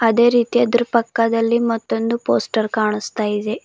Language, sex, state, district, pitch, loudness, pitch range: Kannada, female, Karnataka, Bidar, 230 Hz, -18 LUFS, 220-235 Hz